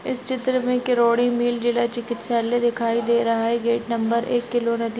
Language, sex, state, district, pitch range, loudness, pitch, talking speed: Hindi, female, Chhattisgarh, Raigarh, 235-240 Hz, -22 LUFS, 235 Hz, 190 wpm